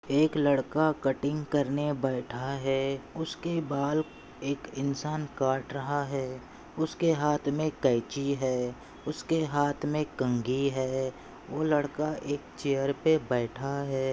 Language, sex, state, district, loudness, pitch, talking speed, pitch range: Hindi, male, Maharashtra, Pune, -30 LUFS, 140 Hz, 125 wpm, 135-150 Hz